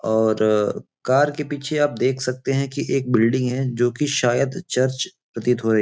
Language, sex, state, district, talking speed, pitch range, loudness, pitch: Hindi, male, Uttar Pradesh, Gorakhpur, 195 wpm, 120-140 Hz, -21 LUFS, 130 Hz